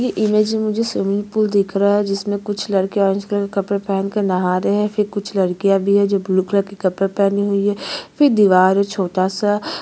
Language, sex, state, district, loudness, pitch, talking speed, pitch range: Hindi, female, Chhattisgarh, Sukma, -18 LUFS, 200 Hz, 230 wpm, 195-205 Hz